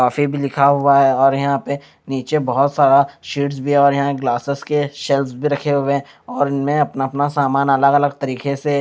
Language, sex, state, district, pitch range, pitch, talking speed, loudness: Hindi, male, Chandigarh, Chandigarh, 140-145 Hz, 140 Hz, 200 wpm, -17 LUFS